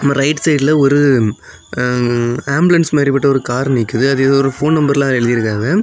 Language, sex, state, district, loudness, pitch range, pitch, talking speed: Tamil, male, Tamil Nadu, Kanyakumari, -14 LUFS, 125-145 Hz, 135 Hz, 165 wpm